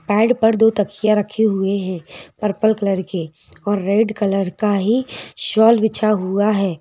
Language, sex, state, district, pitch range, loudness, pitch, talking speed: Hindi, female, Madhya Pradesh, Bhopal, 195-220 Hz, -18 LUFS, 205 Hz, 165 wpm